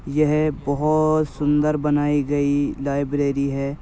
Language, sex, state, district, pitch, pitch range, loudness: Hindi, male, Uttar Pradesh, Jyotiba Phule Nagar, 145 Hz, 140-150 Hz, -21 LUFS